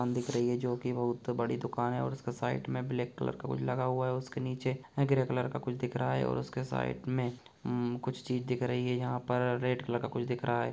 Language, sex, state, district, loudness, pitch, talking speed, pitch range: Hindi, male, Bihar, Begusarai, -34 LUFS, 125 Hz, 270 wpm, 120-125 Hz